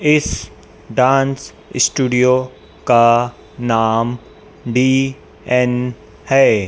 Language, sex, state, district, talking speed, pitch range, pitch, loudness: Hindi, female, Madhya Pradesh, Dhar, 65 wpm, 115-130 Hz, 125 Hz, -16 LUFS